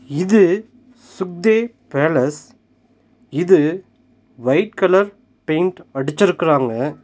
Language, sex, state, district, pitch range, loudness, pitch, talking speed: Tamil, male, Tamil Nadu, Nilgiris, 145-200 Hz, -17 LUFS, 175 Hz, 70 wpm